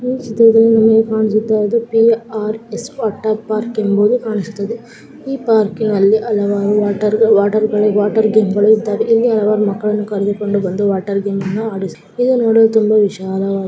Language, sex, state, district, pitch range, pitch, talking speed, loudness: Kannada, female, Karnataka, Gulbarga, 205-225 Hz, 215 Hz, 125 wpm, -14 LUFS